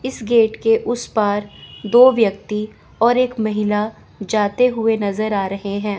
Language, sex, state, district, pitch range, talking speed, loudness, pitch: Hindi, female, Chandigarh, Chandigarh, 210-230 Hz, 160 wpm, -18 LUFS, 215 Hz